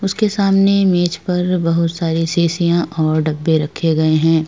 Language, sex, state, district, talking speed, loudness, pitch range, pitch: Hindi, female, Uttar Pradesh, Jyotiba Phule Nagar, 160 wpm, -16 LUFS, 160-180 Hz, 170 Hz